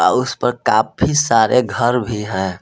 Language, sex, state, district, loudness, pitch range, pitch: Hindi, male, Jharkhand, Palamu, -16 LUFS, 105-125 Hz, 115 Hz